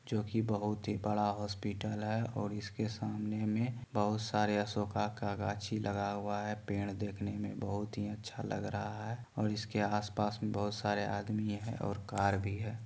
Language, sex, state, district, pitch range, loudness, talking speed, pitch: Maithili, male, Bihar, Supaul, 105-110 Hz, -37 LUFS, 185 wpm, 105 Hz